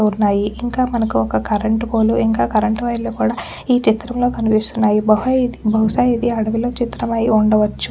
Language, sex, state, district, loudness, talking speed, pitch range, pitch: Telugu, female, Telangana, Nalgonda, -17 LUFS, 160 wpm, 215-240 Hz, 225 Hz